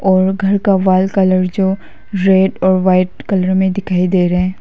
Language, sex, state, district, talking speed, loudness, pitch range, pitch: Hindi, female, Arunachal Pradesh, Papum Pare, 195 wpm, -14 LUFS, 185-195 Hz, 190 Hz